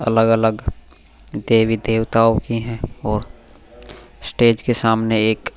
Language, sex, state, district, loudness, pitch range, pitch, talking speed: Hindi, male, Goa, North and South Goa, -18 LUFS, 105-115 Hz, 115 Hz, 120 wpm